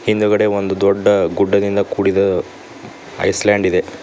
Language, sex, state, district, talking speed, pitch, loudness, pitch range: Kannada, male, Karnataka, Koppal, 105 wpm, 100 Hz, -16 LUFS, 100-105 Hz